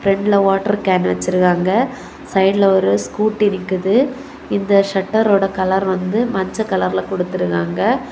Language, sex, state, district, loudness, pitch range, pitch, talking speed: Tamil, female, Tamil Nadu, Kanyakumari, -17 LUFS, 185-205 Hz, 195 Hz, 110 wpm